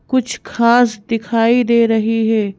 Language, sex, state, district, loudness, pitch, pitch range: Hindi, female, Madhya Pradesh, Bhopal, -15 LUFS, 230 Hz, 225-240 Hz